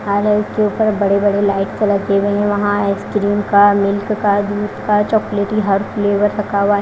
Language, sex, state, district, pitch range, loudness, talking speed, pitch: Hindi, female, Punjab, Fazilka, 200-210 Hz, -16 LUFS, 200 wpm, 205 Hz